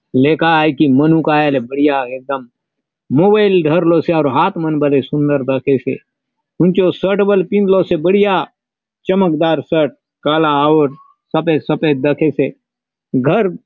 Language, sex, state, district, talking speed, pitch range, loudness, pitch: Halbi, male, Chhattisgarh, Bastar, 140 wpm, 145-175 Hz, -14 LUFS, 155 Hz